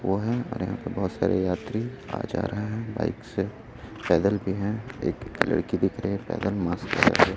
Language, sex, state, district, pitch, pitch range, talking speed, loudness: Hindi, male, Chhattisgarh, Raipur, 100 Hz, 95-115 Hz, 195 wpm, -27 LUFS